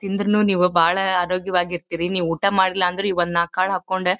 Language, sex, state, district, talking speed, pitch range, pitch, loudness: Kannada, female, Karnataka, Dharwad, 155 wpm, 175-190 Hz, 185 Hz, -20 LUFS